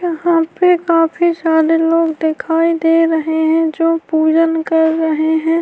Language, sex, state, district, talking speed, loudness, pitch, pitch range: Urdu, female, Bihar, Saharsa, 140 wpm, -14 LUFS, 325 Hz, 320-330 Hz